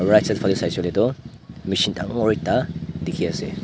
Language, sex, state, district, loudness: Nagamese, male, Nagaland, Dimapur, -22 LUFS